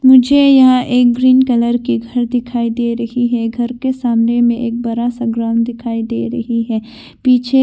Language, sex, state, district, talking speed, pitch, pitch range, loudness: Hindi, female, Arunachal Pradesh, Longding, 195 wpm, 240 Hz, 230-250 Hz, -14 LUFS